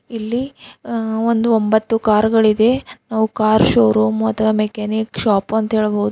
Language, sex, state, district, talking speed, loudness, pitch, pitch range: Kannada, female, Karnataka, Bidar, 145 wpm, -16 LUFS, 220 Hz, 215-225 Hz